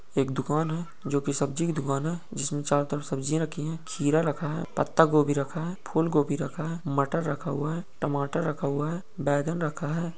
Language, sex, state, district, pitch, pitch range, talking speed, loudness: Hindi, male, Uttar Pradesh, Ghazipur, 150 Hz, 145-165 Hz, 220 wpm, -28 LUFS